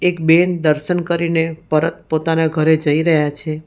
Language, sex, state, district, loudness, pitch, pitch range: Gujarati, female, Gujarat, Valsad, -16 LUFS, 160 Hz, 155-170 Hz